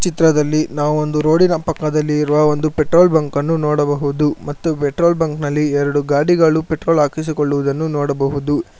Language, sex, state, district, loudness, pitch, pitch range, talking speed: Kannada, male, Karnataka, Bangalore, -16 LUFS, 150 Hz, 145-160 Hz, 135 wpm